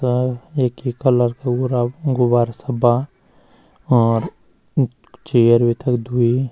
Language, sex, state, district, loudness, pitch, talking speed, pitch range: Garhwali, male, Uttarakhand, Uttarkashi, -18 LUFS, 125 Hz, 120 wpm, 120-130 Hz